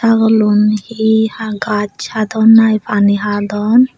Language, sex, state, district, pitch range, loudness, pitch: Chakma, female, Tripura, Unakoti, 210-220 Hz, -13 LUFS, 220 Hz